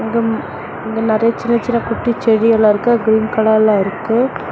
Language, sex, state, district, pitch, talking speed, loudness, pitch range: Tamil, female, Tamil Nadu, Namakkal, 225 Hz, 160 wpm, -15 LUFS, 220-235 Hz